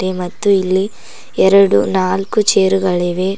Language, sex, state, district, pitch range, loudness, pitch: Kannada, female, Karnataka, Koppal, 185-195 Hz, -14 LUFS, 190 Hz